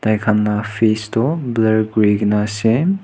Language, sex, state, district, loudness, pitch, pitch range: Nagamese, male, Nagaland, Kohima, -17 LUFS, 110 Hz, 105-115 Hz